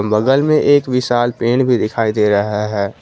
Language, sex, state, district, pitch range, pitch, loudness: Hindi, male, Jharkhand, Garhwa, 105-125 Hz, 115 Hz, -15 LUFS